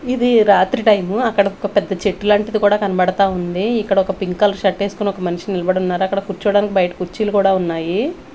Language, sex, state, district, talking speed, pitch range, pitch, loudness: Telugu, female, Andhra Pradesh, Manyam, 195 wpm, 185-205 Hz, 200 Hz, -17 LUFS